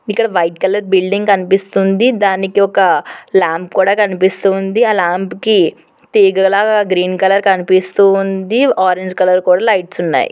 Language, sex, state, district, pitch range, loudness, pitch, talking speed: Telugu, female, Telangana, Hyderabad, 185-205 Hz, -13 LUFS, 195 Hz, 135 wpm